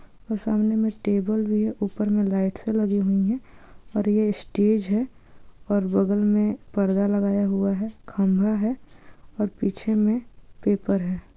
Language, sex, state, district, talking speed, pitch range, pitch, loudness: Hindi, female, Andhra Pradesh, Guntur, 165 wpm, 200-215 Hz, 210 Hz, -24 LUFS